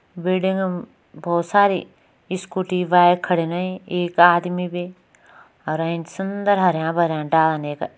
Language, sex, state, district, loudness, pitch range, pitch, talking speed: Kumaoni, female, Uttarakhand, Tehri Garhwal, -20 LUFS, 165-185 Hz, 175 Hz, 120 wpm